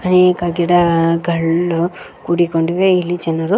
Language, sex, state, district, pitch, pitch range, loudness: Kannada, female, Karnataka, Koppal, 175 Hz, 165-180 Hz, -15 LUFS